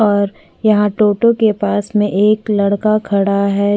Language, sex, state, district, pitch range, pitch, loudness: Hindi, female, Chhattisgarh, Bastar, 200-215 Hz, 205 Hz, -14 LUFS